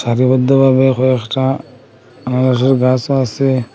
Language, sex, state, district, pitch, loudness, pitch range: Bengali, male, Assam, Hailakandi, 130 Hz, -14 LUFS, 125-135 Hz